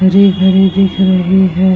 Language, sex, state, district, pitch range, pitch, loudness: Hindi, female, Bihar, Vaishali, 185-190 Hz, 190 Hz, -10 LUFS